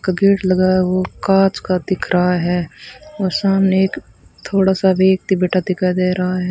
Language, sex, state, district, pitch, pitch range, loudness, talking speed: Hindi, female, Rajasthan, Bikaner, 185 Hz, 180-190 Hz, -16 LUFS, 195 wpm